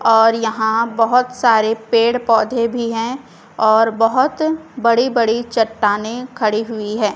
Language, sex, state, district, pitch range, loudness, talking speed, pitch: Hindi, female, Chhattisgarh, Raipur, 220-240 Hz, -16 LUFS, 135 wpm, 230 Hz